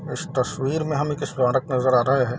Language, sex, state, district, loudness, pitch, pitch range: Hindi, male, Bihar, East Champaran, -22 LUFS, 135 Hz, 125-150 Hz